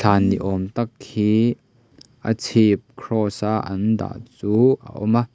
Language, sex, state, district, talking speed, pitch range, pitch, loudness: Mizo, male, Mizoram, Aizawl, 170 wpm, 100-120 Hz, 110 Hz, -21 LUFS